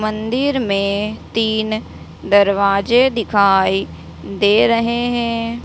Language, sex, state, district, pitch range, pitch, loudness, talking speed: Hindi, female, Madhya Pradesh, Dhar, 200-230 Hz, 215 Hz, -16 LUFS, 85 wpm